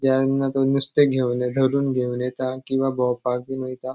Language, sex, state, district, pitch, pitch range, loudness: Konkani, male, Goa, North and South Goa, 130 Hz, 125-135 Hz, -22 LUFS